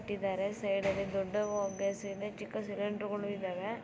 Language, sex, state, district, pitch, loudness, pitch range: Kannada, female, Karnataka, Shimoga, 200 Hz, -36 LUFS, 195-210 Hz